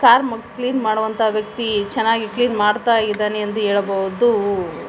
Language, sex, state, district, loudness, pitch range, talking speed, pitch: Kannada, female, Karnataka, Koppal, -19 LUFS, 210-235 Hz, 135 wpm, 220 Hz